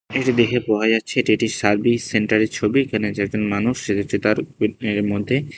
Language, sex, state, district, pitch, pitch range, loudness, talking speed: Bengali, male, Tripura, West Tripura, 110 Hz, 105-120 Hz, -20 LUFS, 205 wpm